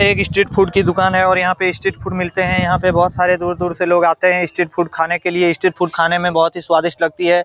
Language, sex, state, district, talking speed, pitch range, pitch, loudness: Hindi, male, Bihar, Saran, 300 wpm, 175-185 Hz, 180 Hz, -15 LUFS